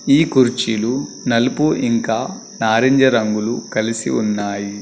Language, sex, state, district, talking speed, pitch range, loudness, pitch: Telugu, male, Telangana, Karimnagar, 85 wpm, 110-130 Hz, -17 LUFS, 115 Hz